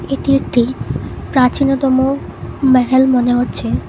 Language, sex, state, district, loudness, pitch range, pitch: Bengali, female, West Bengal, Cooch Behar, -15 LUFS, 250-275 Hz, 260 Hz